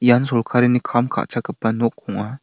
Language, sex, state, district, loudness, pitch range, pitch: Garo, male, Meghalaya, West Garo Hills, -20 LUFS, 115-125 Hz, 120 Hz